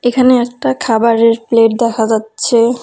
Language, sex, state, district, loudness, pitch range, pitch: Bengali, female, West Bengal, Cooch Behar, -12 LUFS, 225-245 Hz, 230 Hz